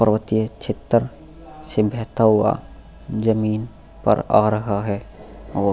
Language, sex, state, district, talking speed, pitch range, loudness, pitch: Hindi, male, Goa, North and South Goa, 125 wpm, 105-115 Hz, -21 LUFS, 110 Hz